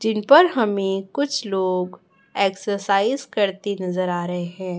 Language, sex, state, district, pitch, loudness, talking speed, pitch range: Hindi, male, Chhattisgarh, Raipur, 195 Hz, -21 LUFS, 140 wpm, 185-215 Hz